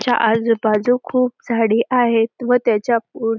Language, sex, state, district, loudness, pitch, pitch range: Marathi, female, Maharashtra, Dhule, -17 LUFS, 230 Hz, 225-245 Hz